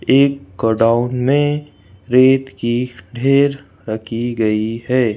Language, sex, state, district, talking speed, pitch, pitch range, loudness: Hindi, male, Madhya Pradesh, Bhopal, 105 wpm, 120 Hz, 110-135 Hz, -17 LUFS